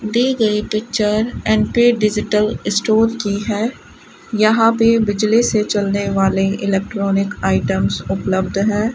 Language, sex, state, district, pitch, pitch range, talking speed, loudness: Hindi, female, Rajasthan, Bikaner, 210 Hz, 200-225 Hz, 125 wpm, -17 LUFS